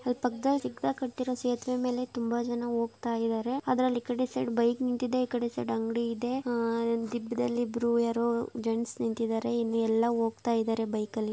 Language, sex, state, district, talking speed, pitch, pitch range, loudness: Kannada, female, Karnataka, Gulbarga, 115 wpm, 235 Hz, 230-245 Hz, -30 LUFS